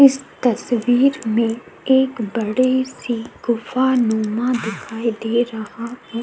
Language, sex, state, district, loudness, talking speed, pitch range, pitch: Hindi, female, Uttar Pradesh, Jyotiba Phule Nagar, -20 LUFS, 115 wpm, 225-255 Hz, 235 Hz